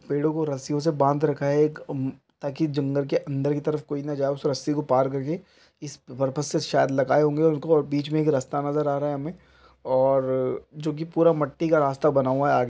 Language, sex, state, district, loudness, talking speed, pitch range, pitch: Maithili, male, Bihar, Samastipur, -24 LUFS, 235 wpm, 140-155 Hz, 145 Hz